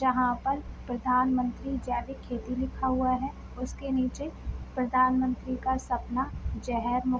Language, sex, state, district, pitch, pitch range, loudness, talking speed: Hindi, female, Bihar, Sitamarhi, 255 Hz, 250-260 Hz, -30 LUFS, 135 wpm